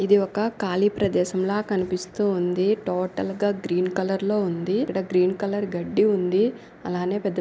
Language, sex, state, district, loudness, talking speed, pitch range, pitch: Telugu, female, Andhra Pradesh, Anantapur, -24 LUFS, 170 wpm, 185-205 Hz, 195 Hz